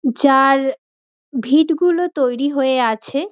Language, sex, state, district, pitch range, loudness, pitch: Bengali, female, West Bengal, Dakshin Dinajpur, 260-295 Hz, -16 LUFS, 270 Hz